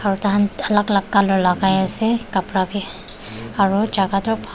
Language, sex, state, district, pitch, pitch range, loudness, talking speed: Nagamese, female, Nagaland, Dimapur, 200 Hz, 190-205 Hz, -17 LUFS, 185 wpm